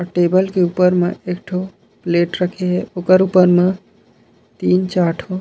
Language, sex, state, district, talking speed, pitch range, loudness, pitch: Chhattisgarhi, male, Chhattisgarh, Raigarh, 165 wpm, 175-185 Hz, -16 LUFS, 180 Hz